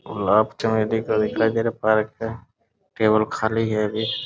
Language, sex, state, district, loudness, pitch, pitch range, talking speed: Hindi, male, Bihar, Sitamarhi, -22 LUFS, 110 Hz, 110-115 Hz, 140 wpm